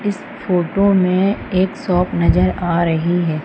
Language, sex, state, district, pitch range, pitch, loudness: Hindi, female, Madhya Pradesh, Umaria, 170-195 Hz, 180 Hz, -17 LUFS